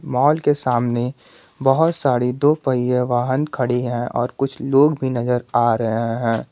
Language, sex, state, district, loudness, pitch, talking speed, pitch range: Hindi, male, Jharkhand, Garhwa, -19 LUFS, 125 Hz, 165 wpm, 120-135 Hz